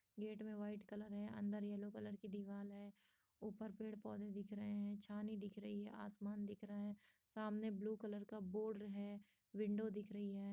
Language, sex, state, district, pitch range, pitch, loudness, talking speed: Hindi, female, Jharkhand, Sahebganj, 205-215 Hz, 205 Hz, -49 LUFS, 195 wpm